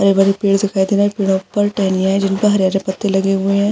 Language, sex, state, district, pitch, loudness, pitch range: Hindi, female, Maharashtra, Aurangabad, 195 Hz, -16 LUFS, 195-200 Hz